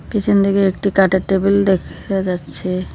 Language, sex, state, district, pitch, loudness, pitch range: Bengali, female, West Bengal, Cooch Behar, 195 Hz, -17 LUFS, 185-200 Hz